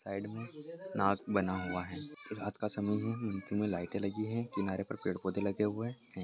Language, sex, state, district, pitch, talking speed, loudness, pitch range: Hindi, male, Chhattisgarh, Raigarh, 105 Hz, 190 wpm, -36 LUFS, 100-110 Hz